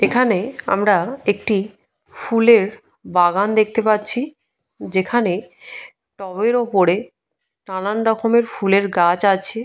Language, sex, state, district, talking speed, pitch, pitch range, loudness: Bengali, female, Jharkhand, Jamtara, 95 wpm, 205 Hz, 195-230 Hz, -18 LUFS